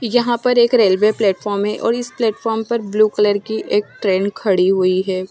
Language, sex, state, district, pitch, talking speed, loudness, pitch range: Hindi, female, Punjab, Kapurthala, 210 Hz, 205 wpm, -17 LUFS, 195-230 Hz